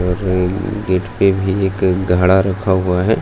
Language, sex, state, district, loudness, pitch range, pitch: Hindi, male, Maharashtra, Aurangabad, -16 LUFS, 90-95 Hz, 95 Hz